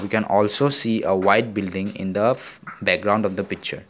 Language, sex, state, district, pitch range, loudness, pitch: English, male, Assam, Kamrup Metropolitan, 100-110 Hz, -20 LUFS, 105 Hz